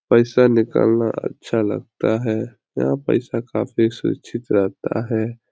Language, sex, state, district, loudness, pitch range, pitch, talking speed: Hindi, male, Bihar, Supaul, -20 LUFS, 110-120 Hz, 115 Hz, 120 wpm